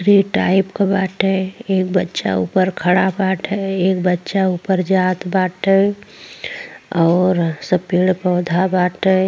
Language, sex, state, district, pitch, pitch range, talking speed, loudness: Bhojpuri, female, Uttar Pradesh, Ghazipur, 185 Hz, 180-195 Hz, 110 wpm, -17 LUFS